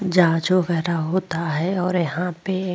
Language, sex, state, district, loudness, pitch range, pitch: Hindi, female, Goa, North and South Goa, -21 LUFS, 170-185 Hz, 180 Hz